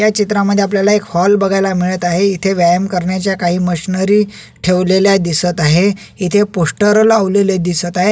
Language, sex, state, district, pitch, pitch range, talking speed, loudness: Marathi, male, Maharashtra, Solapur, 195 Hz, 180-200 Hz, 155 wpm, -13 LUFS